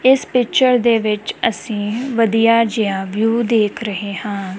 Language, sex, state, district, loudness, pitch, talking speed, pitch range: Punjabi, female, Punjab, Kapurthala, -17 LUFS, 225 Hz, 145 wpm, 205-235 Hz